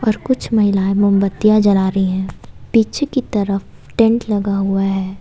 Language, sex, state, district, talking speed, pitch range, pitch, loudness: Hindi, female, Jharkhand, Ranchi, 160 wpm, 195-220 Hz, 200 Hz, -16 LUFS